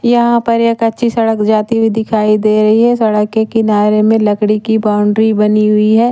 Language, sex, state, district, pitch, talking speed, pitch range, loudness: Hindi, female, Bihar, Katihar, 220 Hz, 205 wpm, 215-225 Hz, -11 LUFS